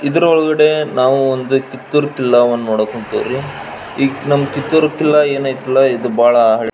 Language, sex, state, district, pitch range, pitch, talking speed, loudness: Kannada, male, Karnataka, Belgaum, 125-150 Hz, 135 Hz, 150 wpm, -14 LUFS